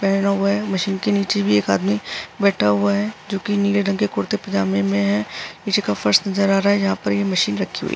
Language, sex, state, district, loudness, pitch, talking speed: Hindi, female, Uttar Pradesh, Jyotiba Phule Nagar, -19 LUFS, 190 Hz, 235 wpm